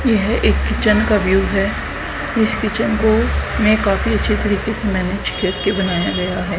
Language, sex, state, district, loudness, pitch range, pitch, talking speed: Hindi, female, Haryana, Charkhi Dadri, -17 LUFS, 195-220 Hz, 210 Hz, 175 wpm